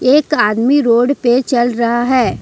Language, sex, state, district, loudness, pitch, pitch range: Hindi, female, Jharkhand, Ranchi, -13 LUFS, 245 Hz, 235-265 Hz